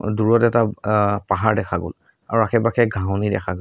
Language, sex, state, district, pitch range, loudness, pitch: Assamese, male, Assam, Sonitpur, 95-115 Hz, -19 LUFS, 105 Hz